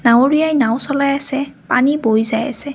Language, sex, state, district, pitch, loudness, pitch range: Assamese, female, Assam, Kamrup Metropolitan, 275 Hz, -16 LUFS, 235-285 Hz